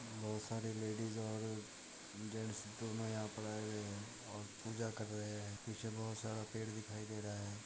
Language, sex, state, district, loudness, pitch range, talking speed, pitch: Hindi, male, Bihar, Muzaffarpur, -45 LUFS, 105-110 Hz, 190 wpm, 110 Hz